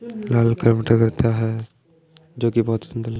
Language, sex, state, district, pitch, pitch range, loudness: Hindi, male, Haryana, Jhajjar, 115 Hz, 115-135 Hz, -20 LUFS